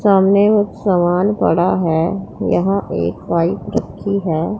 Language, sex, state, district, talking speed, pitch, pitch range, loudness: Hindi, female, Punjab, Pathankot, 130 wpm, 190 Hz, 170-200 Hz, -16 LUFS